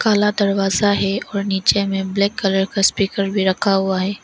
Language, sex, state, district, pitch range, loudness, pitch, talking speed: Hindi, female, Arunachal Pradesh, Longding, 195-200 Hz, -18 LUFS, 195 Hz, 200 wpm